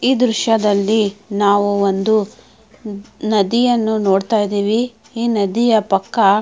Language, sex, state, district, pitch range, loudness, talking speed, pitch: Kannada, female, Karnataka, Mysore, 200-225 Hz, -16 LUFS, 95 wpm, 215 Hz